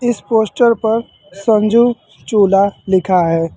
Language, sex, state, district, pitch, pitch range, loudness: Hindi, male, Uttar Pradesh, Lucknow, 215 Hz, 195-230 Hz, -14 LUFS